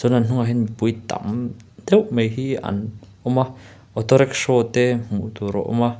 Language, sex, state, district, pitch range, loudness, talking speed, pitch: Mizo, male, Mizoram, Aizawl, 110-125 Hz, -21 LUFS, 200 wpm, 120 Hz